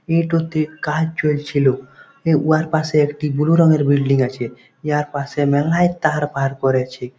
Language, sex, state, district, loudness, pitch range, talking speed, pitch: Bengali, male, West Bengal, Malda, -18 LUFS, 135-155 Hz, 135 wpm, 150 Hz